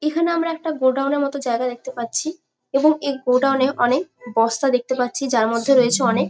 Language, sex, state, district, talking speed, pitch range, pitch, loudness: Bengali, female, West Bengal, Jalpaiguri, 210 wpm, 245-290 Hz, 265 Hz, -20 LUFS